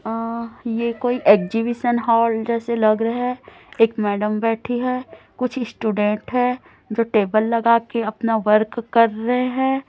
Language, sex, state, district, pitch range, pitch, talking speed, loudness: Hindi, female, Chhattisgarh, Raipur, 220-245 Hz, 230 Hz, 145 wpm, -20 LUFS